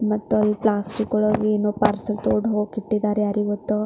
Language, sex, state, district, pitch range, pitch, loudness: Kannada, female, Karnataka, Belgaum, 210-215 Hz, 210 Hz, -22 LUFS